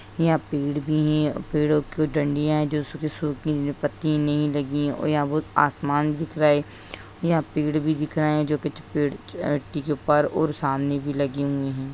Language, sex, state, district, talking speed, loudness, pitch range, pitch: Hindi, female, Bihar, Saran, 195 wpm, -24 LUFS, 145-155 Hz, 150 Hz